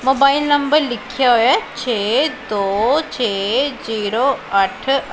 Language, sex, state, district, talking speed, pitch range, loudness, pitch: Punjabi, female, Punjab, Pathankot, 105 wpm, 215-275 Hz, -17 LUFS, 250 Hz